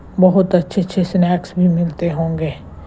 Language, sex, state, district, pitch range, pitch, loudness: Hindi, female, Gujarat, Gandhinagar, 165-185 Hz, 175 Hz, -17 LUFS